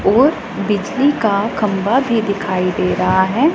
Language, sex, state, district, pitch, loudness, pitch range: Hindi, female, Punjab, Pathankot, 210 Hz, -16 LUFS, 200-260 Hz